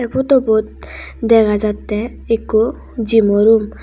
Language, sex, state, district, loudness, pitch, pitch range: Chakma, female, Tripura, West Tripura, -15 LUFS, 225 Hz, 215-230 Hz